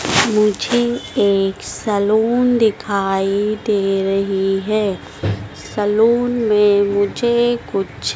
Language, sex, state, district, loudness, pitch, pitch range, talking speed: Hindi, female, Madhya Pradesh, Dhar, -17 LUFS, 205 Hz, 195-220 Hz, 90 wpm